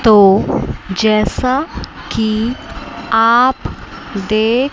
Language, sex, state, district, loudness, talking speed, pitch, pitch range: Hindi, female, Chandigarh, Chandigarh, -14 LUFS, 65 wpm, 220 Hz, 215-250 Hz